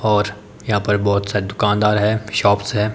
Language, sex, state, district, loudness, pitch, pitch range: Hindi, male, Himachal Pradesh, Shimla, -18 LUFS, 105 Hz, 100-105 Hz